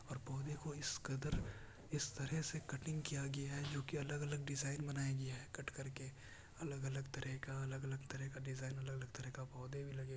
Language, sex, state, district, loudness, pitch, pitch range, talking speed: Hindi, male, Bihar, Kishanganj, -45 LUFS, 135 Hz, 130-140 Hz, 200 wpm